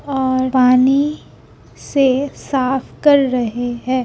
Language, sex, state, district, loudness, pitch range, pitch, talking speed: Hindi, female, Uttar Pradesh, Jalaun, -16 LUFS, 255-275 Hz, 260 Hz, 105 wpm